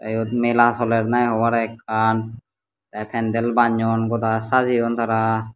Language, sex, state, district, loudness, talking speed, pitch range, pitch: Chakma, male, Tripura, Dhalai, -20 LUFS, 130 wpm, 110-120 Hz, 115 Hz